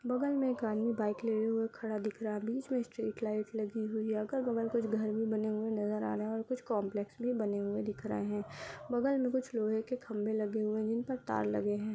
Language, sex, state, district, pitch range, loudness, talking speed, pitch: Hindi, female, Goa, North and South Goa, 215-235 Hz, -35 LUFS, 240 wpm, 220 Hz